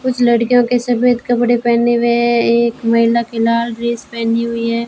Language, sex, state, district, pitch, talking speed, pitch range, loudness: Hindi, female, Rajasthan, Bikaner, 235 Hz, 195 wpm, 230-240 Hz, -14 LUFS